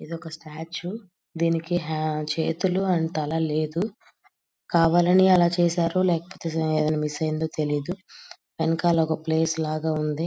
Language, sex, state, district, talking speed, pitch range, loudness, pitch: Telugu, female, Andhra Pradesh, Guntur, 130 wpm, 155-175 Hz, -24 LUFS, 165 Hz